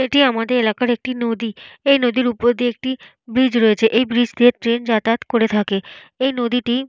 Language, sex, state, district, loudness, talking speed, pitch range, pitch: Bengali, female, Jharkhand, Jamtara, -18 LUFS, 190 wpm, 230-250 Hz, 240 Hz